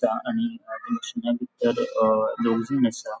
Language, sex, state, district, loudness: Konkani, male, Goa, North and South Goa, -25 LUFS